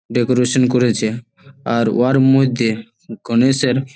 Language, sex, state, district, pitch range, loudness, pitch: Bengali, male, West Bengal, Malda, 115-135 Hz, -16 LUFS, 125 Hz